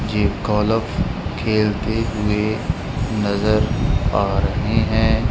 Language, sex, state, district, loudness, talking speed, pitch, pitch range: Hindi, male, Punjab, Kapurthala, -20 LUFS, 90 wpm, 105 Hz, 100-110 Hz